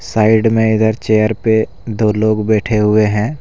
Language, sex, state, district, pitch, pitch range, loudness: Hindi, male, Jharkhand, Deoghar, 110 Hz, 105-110 Hz, -14 LUFS